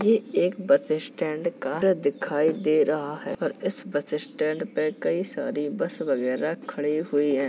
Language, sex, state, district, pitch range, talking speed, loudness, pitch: Hindi, male, Uttar Pradesh, Jalaun, 145-170 Hz, 170 wpm, -26 LUFS, 155 Hz